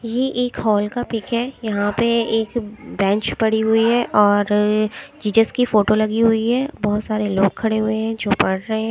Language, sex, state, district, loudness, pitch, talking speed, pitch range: Hindi, female, Haryana, Charkhi Dadri, -19 LUFS, 220 Hz, 200 wpm, 210-235 Hz